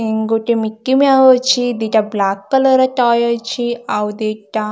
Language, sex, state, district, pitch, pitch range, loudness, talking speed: Odia, female, Odisha, Khordha, 235 Hz, 220-255 Hz, -15 LUFS, 155 wpm